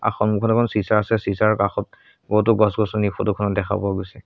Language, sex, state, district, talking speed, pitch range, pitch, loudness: Assamese, male, Assam, Sonitpur, 185 wpm, 100-110 Hz, 105 Hz, -20 LUFS